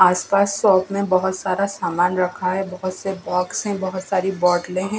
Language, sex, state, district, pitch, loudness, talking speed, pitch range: Hindi, female, Odisha, Khordha, 185 Hz, -20 LUFS, 190 wpm, 180-195 Hz